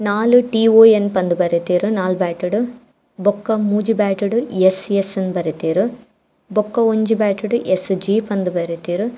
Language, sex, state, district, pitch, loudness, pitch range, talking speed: Tulu, female, Karnataka, Dakshina Kannada, 205 Hz, -17 LUFS, 185-225 Hz, 155 wpm